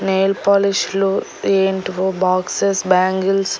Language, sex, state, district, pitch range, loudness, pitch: Telugu, female, Andhra Pradesh, Annamaya, 185-195 Hz, -17 LUFS, 190 Hz